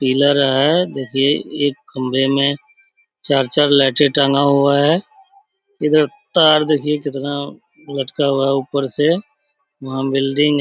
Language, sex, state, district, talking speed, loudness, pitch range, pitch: Hindi, male, Bihar, Supaul, 130 wpm, -16 LUFS, 135-160 Hz, 145 Hz